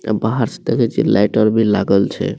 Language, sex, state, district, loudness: Maithili, male, Bihar, Madhepura, -16 LUFS